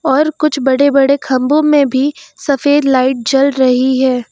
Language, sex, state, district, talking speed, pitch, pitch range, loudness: Hindi, female, Uttar Pradesh, Lucknow, 165 wpm, 275 Hz, 260-290 Hz, -12 LUFS